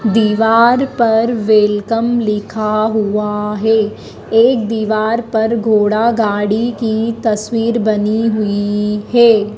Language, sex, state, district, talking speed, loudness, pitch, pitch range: Hindi, female, Madhya Pradesh, Dhar, 100 wpm, -14 LUFS, 220 Hz, 210-230 Hz